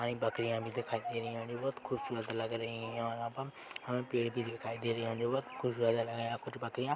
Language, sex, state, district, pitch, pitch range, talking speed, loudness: Hindi, male, Chhattisgarh, Bilaspur, 115 Hz, 115-120 Hz, 285 wpm, -37 LUFS